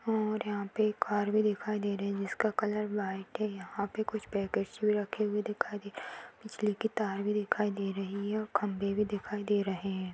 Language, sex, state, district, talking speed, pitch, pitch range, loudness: Kumaoni, female, Uttarakhand, Tehri Garhwal, 235 wpm, 205 Hz, 200-215 Hz, -33 LUFS